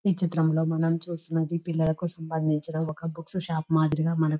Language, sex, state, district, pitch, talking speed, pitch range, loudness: Telugu, female, Telangana, Nalgonda, 160 Hz, 135 wpm, 160-165 Hz, -27 LUFS